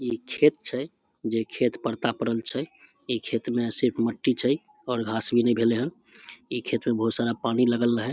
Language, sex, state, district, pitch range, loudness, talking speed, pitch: Maithili, male, Bihar, Samastipur, 115-125 Hz, -26 LUFS, 205 wpm, 120 Hz